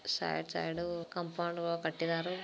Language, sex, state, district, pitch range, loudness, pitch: Kannada, female, Karnataka, Belgaum, 165-175 Hz, -36 LUFS, 170 Hz